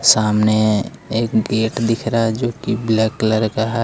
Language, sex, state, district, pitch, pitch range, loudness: Hindi, male, Jharkhand, Ranchi, 110 Hz, 110-115 Hz, -18 LUFS